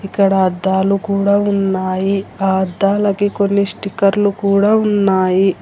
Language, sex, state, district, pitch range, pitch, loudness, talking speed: Telugu, female, Telangana, Hyderabad, 190-200 Hz, 195 Hz, -15 LUFS, 105 wpm